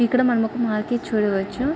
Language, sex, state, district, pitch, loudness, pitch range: Telugu, female, Andhra Pradesh, Krishna, 235 Hz, -22 LUFS, 215-245 Hz